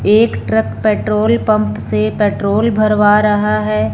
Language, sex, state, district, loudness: Hindi, female, Punjab, Fazilka, -14 LUFS